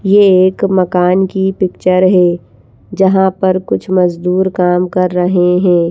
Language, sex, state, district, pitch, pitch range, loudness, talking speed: Hindi, female, Madhya Pradesh, Bhopal, 185 Hz, 180-190 Hz, -12 LUFS, 140 wpm